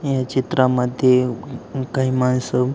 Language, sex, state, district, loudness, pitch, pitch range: Marathi, male, Maharashtra, Aurangabad, -19 LUFS, 130 Hz, 125-130 Hz